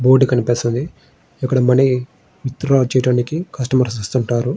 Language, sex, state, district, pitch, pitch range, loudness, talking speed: Telugu, male, Andhra Pradesh, Srikakulam, 130 Hz, 125-135 Hz, -17 LUFS, 120 wpm